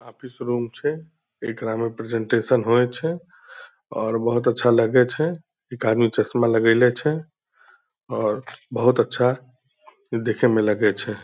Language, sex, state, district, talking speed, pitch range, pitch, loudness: Hindi, male, Bihar, Purnia, 135 wpm, 115-155 Hz, 125 Hz, -22 LUFS